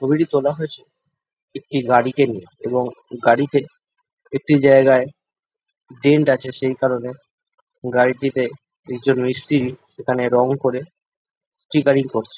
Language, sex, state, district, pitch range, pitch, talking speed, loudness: Bengali, male, West Bengal, Jalpaiguri, 125-150 Hz, 135 Hz, 110 wpm, -18 LUFS